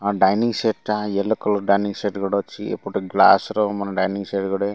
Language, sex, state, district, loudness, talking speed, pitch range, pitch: Odia, male, Odisha, Malkangiri, -21 LUFS, 175 wpm, 100-105 Hz, 100 Hz